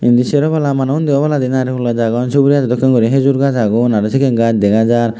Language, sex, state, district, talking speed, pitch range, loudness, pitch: Chakma, male, Tripura, West Tripura, 230 wpm, 115-140 Hz, -13 LUFS, 130 Hz